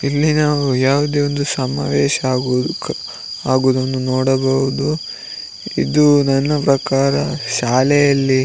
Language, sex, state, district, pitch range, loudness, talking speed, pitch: Kannada, male, Karnataka, Dakshina Kannada, 130-145 Hz, -16 LUFS, 90 wpm, 135 Hz